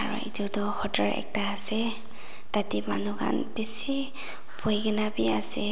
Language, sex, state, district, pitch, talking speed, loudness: Nagamese, female, Nagaland, Dimapur, 205 Hz, 125 wpm, -22 LUFS